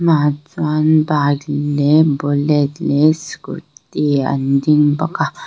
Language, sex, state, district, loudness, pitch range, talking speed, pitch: Mizo, female, Mizoram, Aizawl, -16 LUFS, 145-155 Hz, 100 wpm, 145 Hz